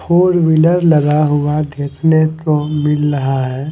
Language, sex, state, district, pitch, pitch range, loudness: Hindi, male, Delhi, New Delhi, 150 Hz, 145-160 Hz, -14 LUFS